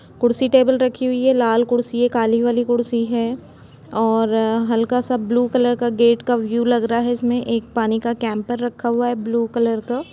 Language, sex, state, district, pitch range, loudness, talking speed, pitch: Hindi, female, Chhattisgarh, Kabirdham, 230-245 Hz, -19 LUFS, 200 wpm, 240 Hz